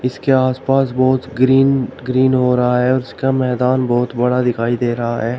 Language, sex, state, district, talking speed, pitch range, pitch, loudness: Hindi, male, Uttar Pradesh, Shamli, 190 wpm, 125-130 Hz, 130 Hz, -16 LUFS